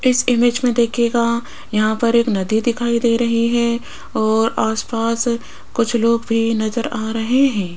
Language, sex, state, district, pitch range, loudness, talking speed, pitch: Hindi, female, Rajasthan, Jaipur, 225-235 Hz, -18 LUFS, 160 wpm, 235 Hz